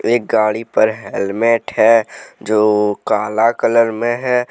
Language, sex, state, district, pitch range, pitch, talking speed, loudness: Hindi, male, Jharkhand, Deoghar, 105-115 Hz, 115 Hz, 135 wpm, -15 LUFS